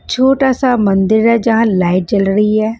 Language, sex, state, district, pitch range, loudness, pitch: Hindi, female, Bihar, West Champaran, 200-235 Hz, -12 LUFS, 220 Hz